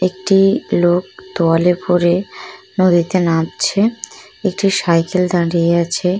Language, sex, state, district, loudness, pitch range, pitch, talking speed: Bengali, female, West Bengal, Purulia, -15 LUFS, 170-195 Hz, 180 Hz, 95 wpm